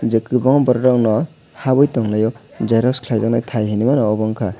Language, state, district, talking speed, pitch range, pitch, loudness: Kokborok, Tripura, West Tripura, 155 wpm, 110-130 Hz, 115 Hz, -17 LUFS